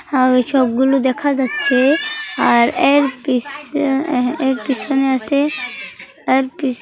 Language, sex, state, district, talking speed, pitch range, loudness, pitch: Bengali, female, West Bengal, Kolkata, 105 wpm, 255-285 Hz, -16 LUFS, 265 Hz